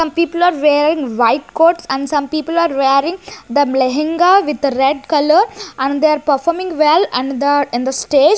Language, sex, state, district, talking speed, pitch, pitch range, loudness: English, female, Chandigarh, Chandigarh, 195 wpm, 295 Hz, 275-335 Hz, -14 LUFS